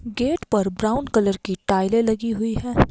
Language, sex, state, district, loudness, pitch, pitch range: Hindi, female, Himachal Pradesh, Shimla, -22 LUFS, 220 Hz, 200-230 Hz